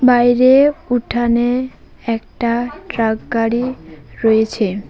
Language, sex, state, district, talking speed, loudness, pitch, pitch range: Bengali, female, West Bengal, Alipurduar, 75 wpm, -16 LUFS, 235 Hz, 220-250 Hz